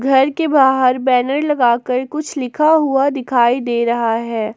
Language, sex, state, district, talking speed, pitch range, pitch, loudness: Hindi, female, Jharkhand, Palamu, 160 wpm, 240-280 Hz, 260 Hz, -15 LUFS